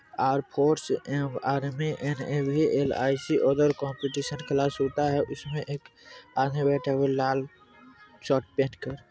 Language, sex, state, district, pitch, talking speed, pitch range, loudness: Hindi, male, Bihar, Vaishali, 140 Hz, 150 wpm, 135-145 Hz, -27 LUFS